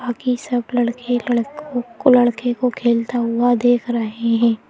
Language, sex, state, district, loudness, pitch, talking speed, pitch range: Hindi, female, Madhya Pradesh, Bhopal, -18 LUFS, 245 Hz, 140 wpm, 235-245 Hz